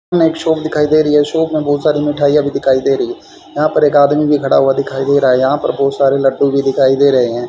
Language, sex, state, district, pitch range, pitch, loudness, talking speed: Hindi, male, Haryana, Rohtak, 135-150 Hz, 145 Hz, -13 LUFS, 305 wpm